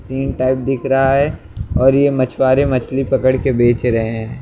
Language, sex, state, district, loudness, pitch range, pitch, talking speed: Hindi, male, Maharashtra, Mumbai Suburban, -16 LUFS, 125-135 Hz, 130 Hz, 190 wpm